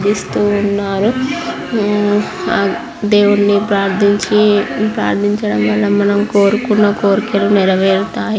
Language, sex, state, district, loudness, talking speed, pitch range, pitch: Telugu, female, Andhra Pradesh, Srikakulam, -14 LUFS, 70 wpm, 200-210 Hz, 205 Hz